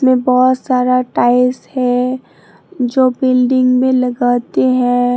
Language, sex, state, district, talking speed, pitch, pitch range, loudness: Hindi, female, Tripura, Dhalai, 105 wpm, 255 Hz, 245-255 Hz, -13 LUFS